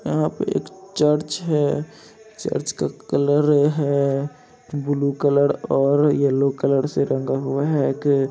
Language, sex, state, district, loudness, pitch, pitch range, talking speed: Hindi, male, Bihar, Lakhisarai, -21 LUFS, 145 Hz, 140-150 Hz, 145 wpm